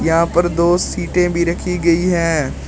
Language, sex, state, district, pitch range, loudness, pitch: Hindi, male, Uttar Pradesh, Shamli, 165-175 Hz, -16 LUFS, 170 Hz